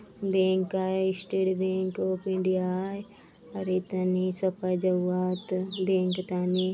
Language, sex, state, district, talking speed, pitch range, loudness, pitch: Halbi, female, Chhattisgarh, Bastar, 135 wpm, 185-190 Hz, -28 LUFS, 185 Hz